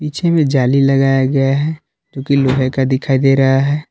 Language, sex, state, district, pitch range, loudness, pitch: Hindi, male, Jharkhand, Palamu, 135-145 Hz, -14 LUFS, 135 Hz